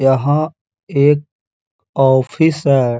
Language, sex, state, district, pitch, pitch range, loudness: Hindi, male, Uttar Pradesh, Hamirpur, 135 Hz, 120-150 Hz, -15 LUFS